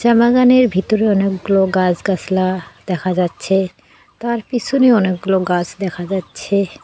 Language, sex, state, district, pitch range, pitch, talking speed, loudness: Bengali, female, West Bengal, Cooch Behar, 185-220 Hz, 195 Hz, 125 wpm, -16 LUFS